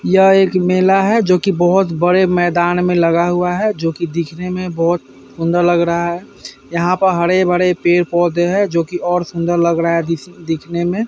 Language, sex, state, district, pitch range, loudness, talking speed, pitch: Hindi, male, Bihar, Vaishali, 170-180 Hz, -15 LUFS, 200 wpm, 175 Hz